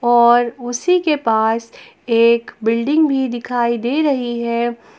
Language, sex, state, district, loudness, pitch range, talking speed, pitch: Hindi, female, Jharkhand, Palamu, -17 LUFS, 235-255 Hz, 130 wpm, 240 Hz